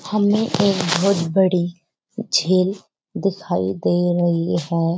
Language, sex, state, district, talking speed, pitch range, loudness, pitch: Hindi, female, Uttarakhand, Uttarkashi, 110 wpm, 170-195 Hz, -19 LUFS, 175 Hz